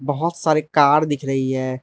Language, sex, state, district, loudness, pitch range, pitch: Hindi, male, Arunachal Pradesh, Lower Dibang Valley, -19 LUFS, 135-155 Hz, 145 Hz